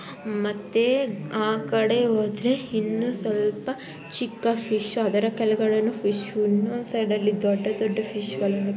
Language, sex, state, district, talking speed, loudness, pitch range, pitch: Kannada, female, Karnataka, Mysore, 80 wpm, -25 LUFS, 210-230 Hz, 215 Hz